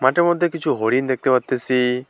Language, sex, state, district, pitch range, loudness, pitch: Bengali, male, West Bengal, Alipurduar, 125-165 Hz, -19 LUFS, 130 Hz